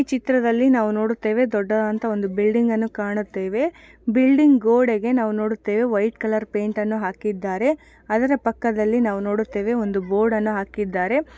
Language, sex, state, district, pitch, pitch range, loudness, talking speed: Kannada, female, Karnataka, Shimoga, 220 Hz, 210-240 Hz, -21 LUFS, 120 wpm